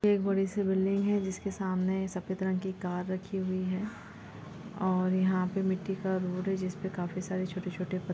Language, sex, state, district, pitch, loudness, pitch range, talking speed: Hindi, female, Chhattisgarh, Rajnandgaon, 190 Hz, -32 LUFS, 185-195 Hz, 190 wpm